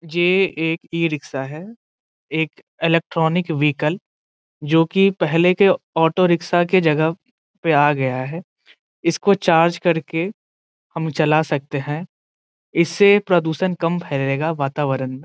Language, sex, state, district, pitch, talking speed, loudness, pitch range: Hindi, male, Bihar, Saran, 165 Hz, 130 wpm, -19 LUFS, 155-175 Hz